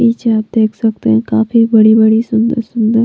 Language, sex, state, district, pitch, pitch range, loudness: Hindi, female, Maharashtra, Mumbai Suburban, 225 Hz, 220-230 Hz, -12 LUFS